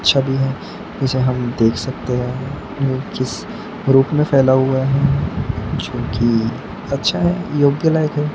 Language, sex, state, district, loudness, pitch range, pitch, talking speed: Hindi, male, Maharashtra, Gondia, -18 LUFS, 125-145 Hz, 135 Hz, 150 wpm